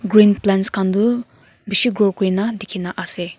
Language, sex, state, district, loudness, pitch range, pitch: Nagamese, female, Nagaland, Kohima, -17 LUFS, 190-210 Hz, 200 Hz